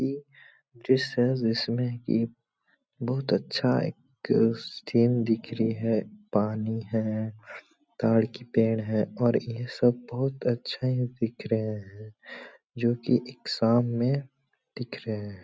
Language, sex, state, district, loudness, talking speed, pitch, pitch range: Hindi, male, Bihar, Supaul, -28 LUFS, 130 wpm, 115 Hz, 110-125 Hz